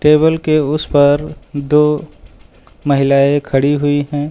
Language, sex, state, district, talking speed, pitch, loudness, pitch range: Hindi, male, Uttar Pradesh, Lucknow, 125 wpm, 145 Hz, -14 LUFS, 145-150 Hz